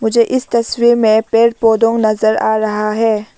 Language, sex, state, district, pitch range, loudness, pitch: Hindi, female, Arunachal Pradesh, Lower Dibang Valley, 220-235 Hz, -13 LUFS, 225 Hz